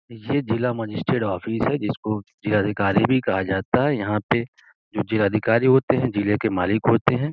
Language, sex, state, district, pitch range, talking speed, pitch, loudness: Hindi, male, Uttar Pradesh, Gorakhpur, 105-120 Hz, 215 wpm, 110 Hz, -22 LUFS